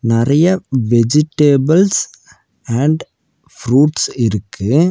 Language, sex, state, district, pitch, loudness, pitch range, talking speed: Tamil, male, Tamil Nadu, Nilgiris, 135 Hz, -14 LUFS, 115-155 Hz, 60 wpm